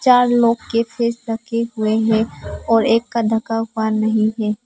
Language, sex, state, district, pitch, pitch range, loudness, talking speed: Hindi, female, Arunachal Pradesh, Papum Pare, 225 Hz, 220-230 Hz, -18 LUFS, 180 wpm